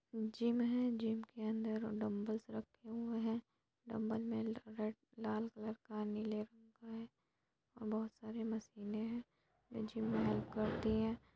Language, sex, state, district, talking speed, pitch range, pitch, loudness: Hindi, female, Jharkhand, Sahebganj, 150 wpm, 220-230 Hz, 220 Hz, -42 LUFS